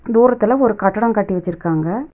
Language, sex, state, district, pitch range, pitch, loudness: Tamil, female, Tamil Nadu, Nilgiris, 180-240 Hz, 215 Hz, -16 LUFS